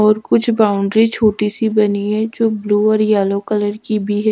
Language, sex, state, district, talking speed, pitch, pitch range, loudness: Hindi, female, Bihar, Kaimur, 210 wpm, 215 Hz, 205-220 Hz, -16 LUFS